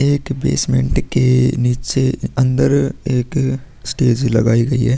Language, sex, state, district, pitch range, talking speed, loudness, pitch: Hindi, male, Uttar Pradesh, Hamirpur, 125-135 Hz, 120 wpm, -16 LUFS, 130 Hz